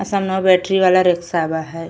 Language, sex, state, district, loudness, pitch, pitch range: Bhojpuri, female, Uttar Pradesh, Ghazipur, -16 LUFS, 185 Hz, 165-190 Hz